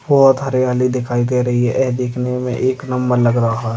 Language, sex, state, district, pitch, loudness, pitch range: Hindi, male, Maharashtra, Nagpur, 125 Hz, -16 LUFS, 120-130 Hz